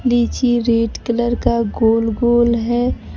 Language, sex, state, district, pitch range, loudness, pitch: Hindi, female, Bihar, Kaimur, 230-240 Hz, -17 LUFS, 235 Hz